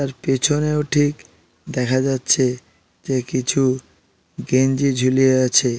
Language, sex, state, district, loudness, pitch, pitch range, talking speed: Bengali, male, West Bengal, Paschim Medinipur, -19 LUFS, 130 Hz, 125-135 Hz, 105 wpm